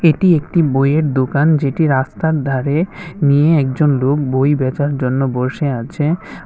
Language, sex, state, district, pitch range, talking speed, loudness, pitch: Bengali, male, Tripura, West Tripura, 135-160 Hz, 140 wpm, -15 LUFS, 145 Hz